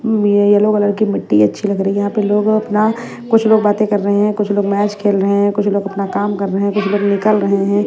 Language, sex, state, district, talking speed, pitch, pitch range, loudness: Hindi, female, Haryana, Jhajjar, 280 wpm, 205 Hz, 200-210 Hz, -15 LUFS